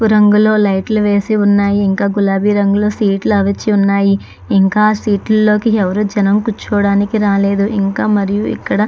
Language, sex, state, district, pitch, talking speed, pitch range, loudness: Telugu, female, Andhra Pradesh, Chittoor, 205 Hz, 130 wpm, 200-210 Hz, -13 LUFS